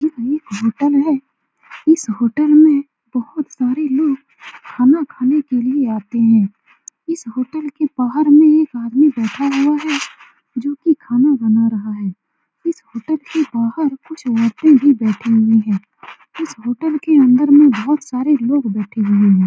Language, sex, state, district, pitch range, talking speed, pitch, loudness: Hindi, female, Bihar, Saran, 230-300 Hz, 165 wpm, 270 Hz, -15 LUFS